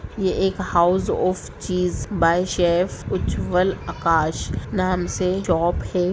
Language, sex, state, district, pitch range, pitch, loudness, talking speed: Hindi, female, Bihar, Sitamarhi, 175-185 Hz, 180 Hz, -21 LUFS, 125 wpm